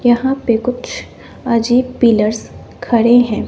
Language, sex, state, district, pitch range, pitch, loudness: Hindi, female, Bihar, West Champaran, 230-250 Hz, 240 Hz, -14 LUFS